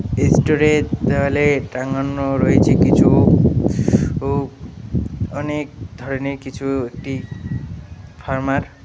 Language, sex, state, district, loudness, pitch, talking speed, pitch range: Bengali, male, West Bengal, Alipurduar, -18 LUFS, 135 Hz, 95 wpm, 125-140 Hz